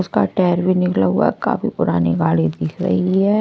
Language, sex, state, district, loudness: Hindi, female, Punjab, Kapurthala, -18 LUFS